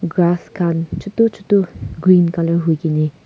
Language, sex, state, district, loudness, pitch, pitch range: Nagamese, female, Nagaland, Kohima, -17 LUFS, 175 Hz, 165-190 Hz